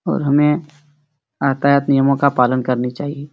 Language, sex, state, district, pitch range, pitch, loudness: Hindi, male, Bihar, Supaul, 135-145 Hz, 140 Hz, -17 LUFS